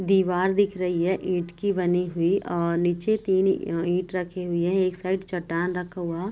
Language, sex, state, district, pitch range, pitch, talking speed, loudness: Hindi, female, Bihar, Gopalganj, 175-190 Hz, 180 Hz, 200 wpm, -25 LUFS